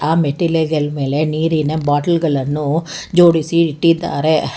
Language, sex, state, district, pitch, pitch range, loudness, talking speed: Kannada, female, Karnataka, Bangalore, 160 Hz, 150-165 Hz, -16 LUFS, 120 wpm